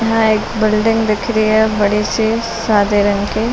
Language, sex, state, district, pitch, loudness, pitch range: Hindi, female, Uttar Pradesh, Muzaffarnagar, 215 Hz, -15 LUFS, 210-225 Hz